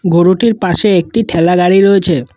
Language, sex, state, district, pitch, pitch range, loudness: Bengali, male, Assam, Kamrup Metropolitan, 180 Hz, 170-200 Hz, -11 LUFS